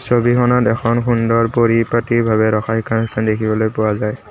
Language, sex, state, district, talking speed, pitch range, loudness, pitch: Assamese, male, Assam, Kamrup Metropolitan, 140 wpm, 110-120 Hz, -16 LUFS, 115 Hz